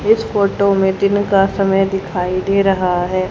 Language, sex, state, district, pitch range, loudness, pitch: Hindi, female, Haryana, Jhajjar, 185-200 Hz, -15 LUFS, 195 Hz